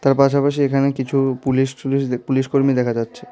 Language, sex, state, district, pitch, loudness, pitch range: Bengali, male, Tripura, West Tripura, 135 Hz, -19 LUFS, 130-140 Hz